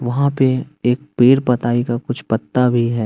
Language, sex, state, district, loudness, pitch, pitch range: Hindi, male, Bihar, West Champaran, -17 LUFS, 125 Hz, 120-130 Hz